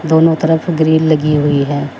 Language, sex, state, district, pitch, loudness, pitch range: Hindi, female, Uttar Pradesh, Shamli, 160 Hz, -13 LUFS, 145-160 Hz